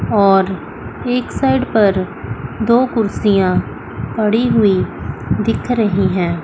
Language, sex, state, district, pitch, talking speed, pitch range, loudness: Hindi, female, Chandigarh, Chandigarh, 205 Hz, 105 wpm, 185-235 Hz, -16 LUFS